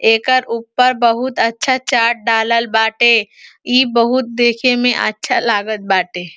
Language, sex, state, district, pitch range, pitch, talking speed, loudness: Bhojpuri, female, Uttar Pradesh, Ghazipur, 225-250 Hz, 235 Hz, 130 wpm, -14 LUFS